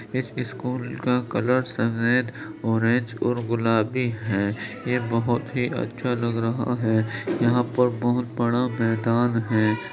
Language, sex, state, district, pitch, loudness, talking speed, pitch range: Hindi, male, Uttar Pradesh, Jyotiba Phule Nagar, 120 Hz, -24 LUFS, 135 wpm, 115-125 Hz